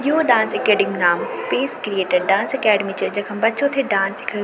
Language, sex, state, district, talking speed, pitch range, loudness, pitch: Garhwali, female, Uttarakhand, Tehri Garhwal, 190 wpm, 195-275 Hz, -19 LUFS, 210 Hz